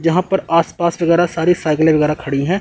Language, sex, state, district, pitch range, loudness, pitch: Hindi, male, Chandigarh, Chandigarh, 155-175 Hz, -16 LUFS, 170 Hz